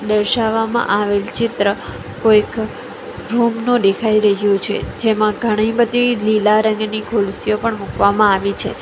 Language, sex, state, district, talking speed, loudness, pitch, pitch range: Gujarati, female, Gujarat, Valsad, 130 wpm, -16 LUFS, 215 Hz, 205-230 Hz